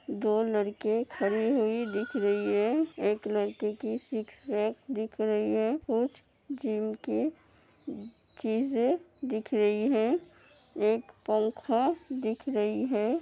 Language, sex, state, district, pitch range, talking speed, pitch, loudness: Hindi, female, Uttar Pradesh, Hamirpur, 215-255 Hz, 125 wpm, 220 Hz, -30 LUFS